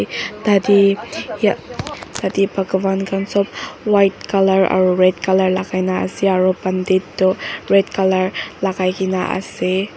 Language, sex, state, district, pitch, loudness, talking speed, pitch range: Nagamese, female, Nagaland, Dimapur, 190 Hz, -17 LUFS, 140 wpm, 185-195 Hz